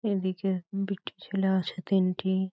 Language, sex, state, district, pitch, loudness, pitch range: Bengali, male, West Bengal, Paschim Medinipur, 190 Hz, -29 LUFS, 185-195 Hz